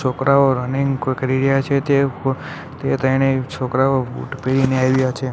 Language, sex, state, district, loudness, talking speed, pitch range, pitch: Gujarati, male, Gujarat, Gandhinagar, -18 LUFS, 155 wpm, 130-135 Hz, 135 Hz